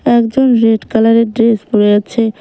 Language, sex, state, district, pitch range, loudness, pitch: Bengali, female, West Bengal, Cooch Behar, 220-235 Hz, -11 LUFS, 225 Hz